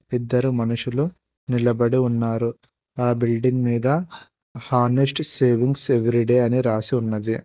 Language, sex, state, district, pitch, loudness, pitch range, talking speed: Telugu, male, Telangana, Hyderabad, 125 Hz, -20 LUFS, 120-130 Hz, 115 wpm